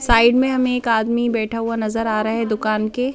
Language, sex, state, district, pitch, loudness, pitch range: Hindi, female, Madhya Pradesh, Bhopal, 230 Hz, -19 LUFS, 220-240 Hz